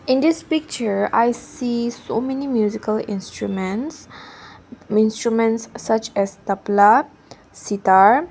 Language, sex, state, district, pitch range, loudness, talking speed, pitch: English, female, Nagaland, Dimapur, 205-245 Hz, -19 LUFS, 100 wpm, 225 Hz